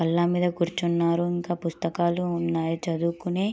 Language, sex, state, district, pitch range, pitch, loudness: Telugu, female, Andhra Pradesh, Srikakulam, 170-175 Hz, 170 Hz, -26 LUFS